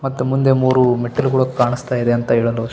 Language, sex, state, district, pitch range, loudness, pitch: Kannada, male, Karnataka, Bellary, 120-130 Hz, -17 LUFS, 125 Hz